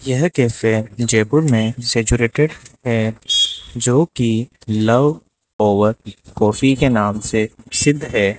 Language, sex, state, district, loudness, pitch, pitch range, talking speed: Hindi, male, Rajasthan, Jaipur, -17 LUFS, 115 Hz, 110-130 Hz, 105 wpm